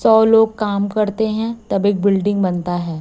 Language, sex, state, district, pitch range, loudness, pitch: Hindi, female, Chhattisgarh, Raipur, 195-220 Hz, -17 LUFS, 205 Hz